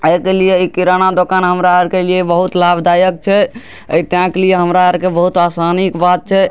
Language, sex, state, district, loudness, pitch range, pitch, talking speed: Maithili, male, Bihar, Darbhanga, -12 LUFS, 175-185 Hz, 180 Hz, 240 wpm